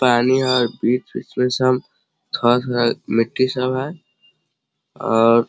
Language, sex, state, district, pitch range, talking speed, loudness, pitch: Hindi, male, Bihar, Sitamarhi, 120-130 Hz, 120 wpm, -19 LUFS, 125 Hz